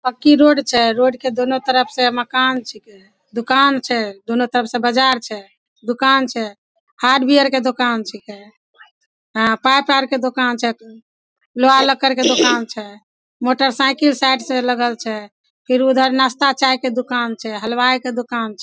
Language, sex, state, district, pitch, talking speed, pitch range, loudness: Maithili, female, Bihar, Samastipur, 250 Hz, 160 wpm, 230-265 Hz, -16 LUFS